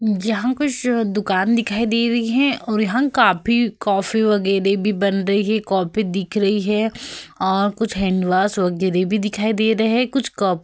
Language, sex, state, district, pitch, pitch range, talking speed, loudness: Hindi, female, Uttar Pradesh, Hamirpur, 210 Hz, 195-230 Hz, 180 wpm, -19 LUFS